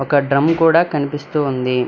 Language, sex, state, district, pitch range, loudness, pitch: Telugu, male, Telangana, Hyderabad, 135-160 Hz, -16 LUFS, 145 Hz